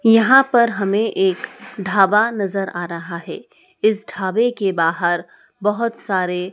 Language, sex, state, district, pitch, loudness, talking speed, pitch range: Hindi, male, Madhya Pradesh, Dhar, 200 Hz, -18 LUFS, 140 wpm, 185-225 Hz